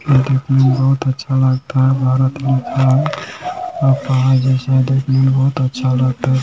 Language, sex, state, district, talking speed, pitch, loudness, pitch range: Hindi, male, Bihar, Bhagalpur, 170 wpm, 130 Hz, -15 LUFS, 130-135 Hz